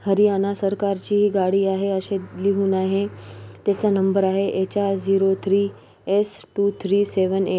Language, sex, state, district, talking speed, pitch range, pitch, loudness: Marathi, female, Maharashtra, Solapur, 165 wpm, 190-200 Hz, 195 Hz, -21 LUFS